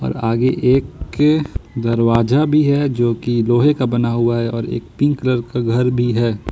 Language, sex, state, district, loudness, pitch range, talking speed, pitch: Hindi, male, Jharkhand, Ranchi, -17 LUFS, 115-130 Hz, 195 wpm, 120 Hz